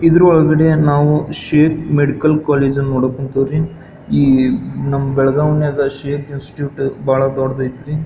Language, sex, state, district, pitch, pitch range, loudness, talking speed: Kannada, male, Karnataka, Belgaum, 145 Hz, 135-150 Hz, -15 LUFS, 110 wpm